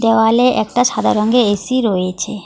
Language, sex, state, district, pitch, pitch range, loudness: Bengali, female, West Bengal, Alipurduar, 225 Hz, 210-245 Hz, -15 LUFS